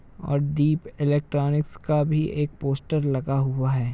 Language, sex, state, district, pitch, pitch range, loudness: Hindi, male, Uttar Pradesh, Jalaun, 145 Hz, 135-150 Hz, -24 LUFS